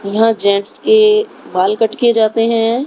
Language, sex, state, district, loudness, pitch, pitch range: Hindi, female, Haryana, Rohtak, -13 LUFS, 225 Hz, 205-245 Hz